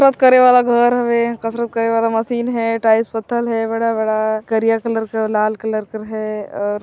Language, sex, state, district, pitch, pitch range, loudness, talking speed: Chhattisgarhi, female, Chhattisgarh, Sarguja, 225 Hz, 220-235 Hz, -17 LUFS, 185 wpm